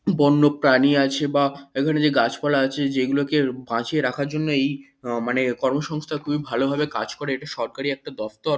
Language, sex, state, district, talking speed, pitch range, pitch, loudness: Bengali, male, West Bengal, North 24 Parganas, 155 wpm, 130-145 Hz, 140 Hz, -22 LUFS